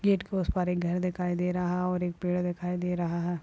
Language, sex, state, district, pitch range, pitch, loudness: Hindi, male, Maharashtra, Chandrapur, 175-180 Hz, 180 Hz, -30 LUFS